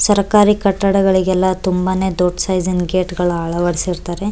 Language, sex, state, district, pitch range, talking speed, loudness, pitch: Kannada, male, Karnataka, Bellary, 180-195 Hz, 125 wpm, -16 LUFS, 185 Hz